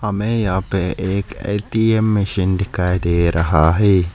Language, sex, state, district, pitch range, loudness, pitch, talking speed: Hindi, male, Arunachal Pradesh, Lower Dibang Valley, 90-105 Hz, -18 LUFS, 95 Hz, 145 wpm